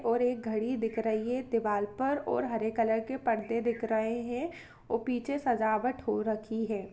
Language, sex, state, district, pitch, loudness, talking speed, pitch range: Hindi, female, Chhattisgarh, Kabirdham, 230 Hz, -32 LUFS, 190 wpm, 220-245 Hz